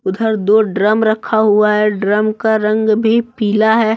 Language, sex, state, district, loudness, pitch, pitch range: Hindi, male, Jharkhand, Deoghar, -14 LUFS, 215 Hz, 210-220 Hz